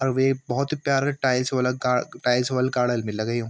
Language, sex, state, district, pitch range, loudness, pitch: Garhwali, male, Uttarakhand, Tehri Garhwal, 125-135 Hz, -24 LUFS, 130 Hz